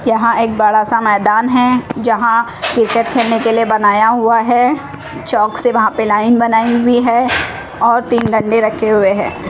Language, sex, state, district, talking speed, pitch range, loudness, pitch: Hindi, female, Odisha, Malkangiri, 175 wpm, 220-240 Hz, -13 LUFS, 230 Hz